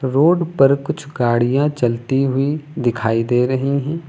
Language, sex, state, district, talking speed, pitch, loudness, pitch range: Hindi, male, Uttar Pradesh, Lucknow, 145 wpm, 135 Hz, -18 LUFS, 120-150 Hz